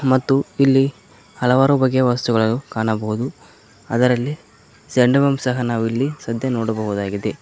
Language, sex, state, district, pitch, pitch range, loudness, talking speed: Kannada, male, Karnataka, Koppal, 125 Hz, 110-135 Hz, -19 LUFS, 115 wpm